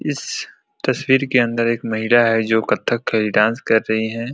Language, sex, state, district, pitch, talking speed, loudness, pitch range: Hindi, male, Bihar, Saran, 115 Hz, 180 wpm, -18 LUFS, 110-120 Hz